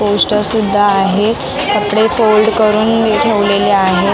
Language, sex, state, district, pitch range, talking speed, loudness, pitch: Marathi, female, Maharashtra, Mumbai Suburban, 205-220 Hz, 130 wpm, -12 LUFS, 210 Hz